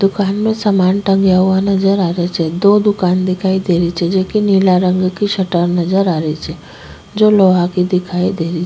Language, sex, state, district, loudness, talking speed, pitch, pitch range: Rajasthani, female, Rajasthan, Nagaur, -14 LUFS, 185 wpm, 185 Hz, 180-195 Hz